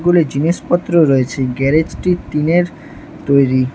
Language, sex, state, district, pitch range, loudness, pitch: Bengali, female, West Bengal, Alipurduar, 135-175 Hz, -15 LUFS, 155 Hz